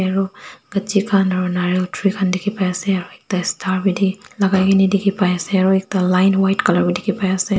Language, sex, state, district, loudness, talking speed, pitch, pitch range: Nagamese, female, Nagaland, Dimapur, -18 LUFS, 205 wpm, 190 Hz, 185-195 Hz